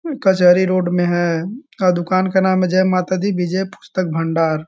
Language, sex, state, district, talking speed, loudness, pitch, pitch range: Hindi, male, Bihar, Sitamarhi, 180 wpm, -17 LUFS, 185 Hz, 175-190 Hz